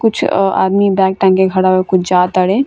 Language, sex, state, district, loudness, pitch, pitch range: Bhojpuri, female, Bihar, Gopalganj, -12 LUFS, 190 Hz, 185-195 Hz